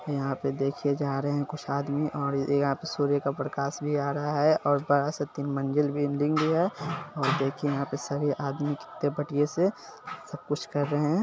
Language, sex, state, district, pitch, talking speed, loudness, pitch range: Hindi, male, Bihar, Sitamarhi, 145 Hz, 215 wpm, -28 LUFS, 140-150 Hz